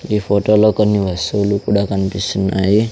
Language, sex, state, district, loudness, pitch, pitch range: Telugu, male, Andhra Pradesh, Sri Satya Sai, -16 LUFS, 100 Hz, 95-105 Hz